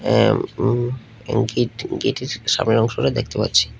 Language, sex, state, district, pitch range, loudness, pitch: Bengali, male, Tripura, West Tripura, 115-130 Hz, -20 LUFS, 120 Hz